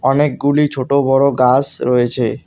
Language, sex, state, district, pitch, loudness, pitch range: Bengali, male, West Bengal, Alipurduar, 135 Hz, -14 LUFS, 125-140 Hz